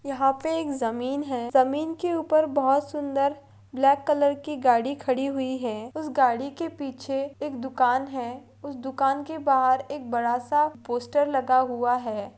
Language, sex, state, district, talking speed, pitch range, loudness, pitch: Hindi, female, Maharashtra, Pune, 165 wpm, 255-290 Hz, -25 LUFS, 270 Hz